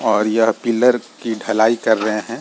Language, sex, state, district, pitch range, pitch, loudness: Hindi, male, Chhattisgarh, Rajnandgaon, 110-115 Hz, 115 Hz, -17 LUFS